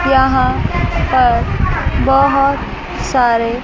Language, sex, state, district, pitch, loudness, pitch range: Hindi, male, Chandigarh, Chandigarh, 260 Hz, -14 LUFS, 245-275 Hz